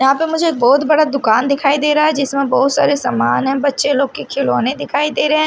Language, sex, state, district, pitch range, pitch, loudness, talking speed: Hindi, female, Odisha, Sambalpur, 270-300 Hz, 280 Hz, -15 LUFS, 240 wpm